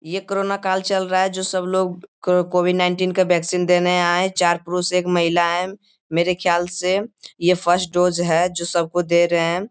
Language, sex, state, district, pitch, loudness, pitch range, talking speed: Hindi, male, Bihar, Jamui, 180 Hz, -19 LUFS, 175-185 Hz, 210 wpm